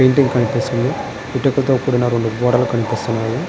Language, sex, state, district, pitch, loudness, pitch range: Telugu, male, Andhra Pradesh, Srikakulam, 125 Hz, -17 LUFS, 115-135 Hz